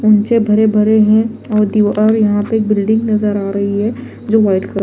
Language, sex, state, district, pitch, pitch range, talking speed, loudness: Hindi, female, Delhi, New Delhi, 215 Hz, 210-220 Hz, 225 wpm, -13 LUFS